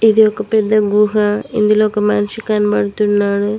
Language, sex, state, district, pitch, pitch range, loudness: Telugu, female, Telangana, Mahabubabad, 210 Hz, 205-215 Hz, -14 LUFS